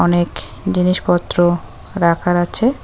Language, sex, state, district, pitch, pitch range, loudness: Bengali, female, West Bengal, Cooch Behar, 175 Hz, 175-185 Hz, -16 LUFS